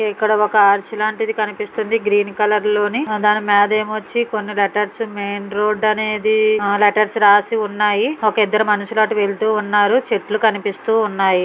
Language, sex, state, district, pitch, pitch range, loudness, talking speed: Telugu, female, Telangana, Karimnagar, 210 Hz, 205-215 Hz, -17 LUFS, 130 wpm